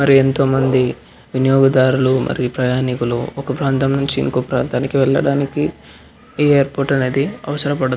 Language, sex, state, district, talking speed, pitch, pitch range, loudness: Telugu, male, Andhra Pradesh, Anantapur, 135 wpm, 135 Hz, 130-140 Hz, -17 LUFS